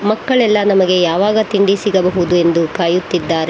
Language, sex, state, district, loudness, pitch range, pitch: Kannada, female, Karnataka, Bangalore, -14 LUFS, 175-205 Hz, 185 Hz